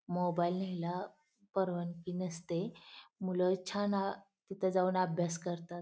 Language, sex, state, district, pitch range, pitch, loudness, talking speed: Marathi, female, Maharashtra, Pune, 175-190 Hz, 180 Hz, -36 LUFS, 105 wpm